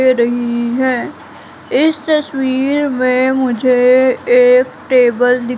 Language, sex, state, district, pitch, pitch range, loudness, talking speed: Hindi, female, Madhya Pradesh, Katni, 255 Hz, 250-280 Hz, -13 LUFS, 105 wpm